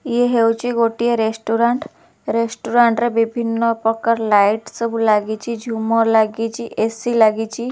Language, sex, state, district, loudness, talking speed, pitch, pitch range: Odia, female, Odisha, Khordha, -18 LUFS, 115 wpm, 230 Hz, 225-235 Hz